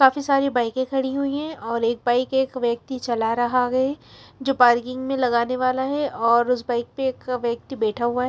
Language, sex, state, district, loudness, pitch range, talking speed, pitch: Hindi, female, Chandigarh, Chandigarh, -22 LUFS, 240-265 Hz, 210 wpm, 250 Hz